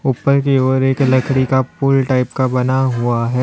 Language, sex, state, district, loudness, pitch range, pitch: Hindi, male, Uttar Pradesh, Lalitpur, -15 LUFS, 130-135 Hz, 130 Hz